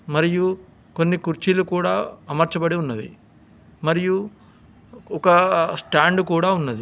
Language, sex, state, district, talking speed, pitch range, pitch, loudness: Telugu, male, Telangana, Hyderabad, 95 wpm, 160-185 Hz, 170 Hz, -20 LUFS